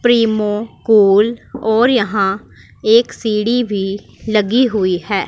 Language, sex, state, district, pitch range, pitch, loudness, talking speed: Hindi, female, Punjab, Pathankot, 205-235 Hz, 215 Hz, -15 LUFS, 100 wpm